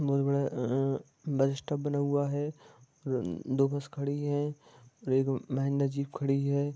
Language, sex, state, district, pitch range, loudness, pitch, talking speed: Hindi, male, Jharkhand, Sahebganj, 135-145 Hz, -31 LUFS, 140 Hz, 160 wpm